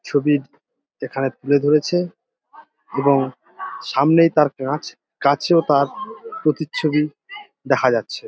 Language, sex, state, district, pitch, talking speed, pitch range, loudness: Bengali, male, West Bengal, Dakshin Dinajpur, 150 Hz, 100 wpm, 140-180 Hz, -19 LUFS